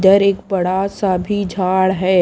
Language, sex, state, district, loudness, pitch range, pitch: Hindi, female, Delhi, New Delhi, -17 LUFS, 185-200 Hz, 190 Hz